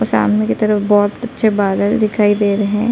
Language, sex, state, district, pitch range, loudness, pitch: Hindi, female, Chhattisgarh, Sarguja, 200-215 Hz, -15 LUFS, 205 Hz